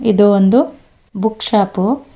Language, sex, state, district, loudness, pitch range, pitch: Kannada, female, Karnataka, Bangalore, -14 LUFS, 200-235 Hz, 215 Hz